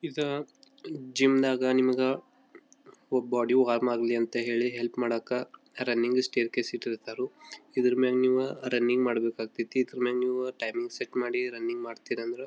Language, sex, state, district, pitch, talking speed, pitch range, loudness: Kannada, male, Karnataka, Belgaum, 125 Hz, 145 wpm, 120-135 Hz, -29 LUFS